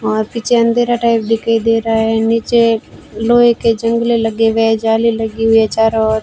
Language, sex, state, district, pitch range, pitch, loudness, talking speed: Hindi, female, Rajasthan, Bikaner, 225-230 Hz, 225 Hz, -13 LUFS, 200 wpm